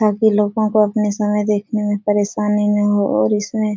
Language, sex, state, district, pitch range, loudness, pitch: Hindi, female, Bihar, Supaul, 205-215 Hz, -17 LUFS, 210 Hz